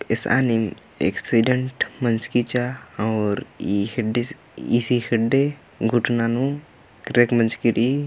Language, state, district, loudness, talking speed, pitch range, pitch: Kurukh, Chhattisgarh, Jashpur, -22 LUFS, 110 wpm, 115-130 Hz, 120 Hz